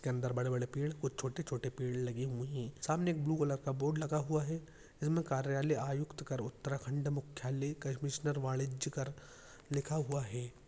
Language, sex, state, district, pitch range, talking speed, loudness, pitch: Hindi, male, Uttarakhand, Tehri Garhwal, 130-150 Hz, 170 wpm, -38 LUFS, 140 Hz